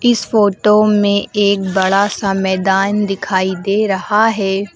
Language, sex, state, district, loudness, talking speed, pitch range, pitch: Hindi, female, Uttar Pradesh, Lucknow, -14 LUFS, 140 wpm, 195-210 Hz, 200 Hz